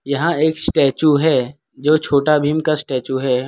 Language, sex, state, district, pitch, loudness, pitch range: Hindi, male, Gujarat, Valsad, 145 Hz, -16 LUFS, 135-155 Hz